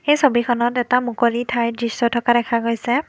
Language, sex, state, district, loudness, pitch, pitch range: Assamese, female, Assam, Kamrup Metropolitan, -19 LUFS, 240 Hz, 235-245 Hz